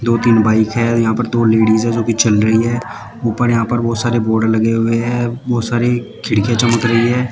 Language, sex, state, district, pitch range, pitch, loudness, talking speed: Hindi, male, Uttar Pradesh, Shamli, 110-120 Hz, 115 Hz, -15 LUFS, 240 wpm